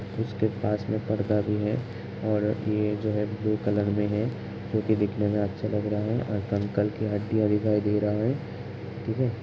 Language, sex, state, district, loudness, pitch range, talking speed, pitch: Hindi, male, Uttar Pradesh, Hamirpur, -27 LUFS, 105-110 Hz, 205 wpm, 105 Hz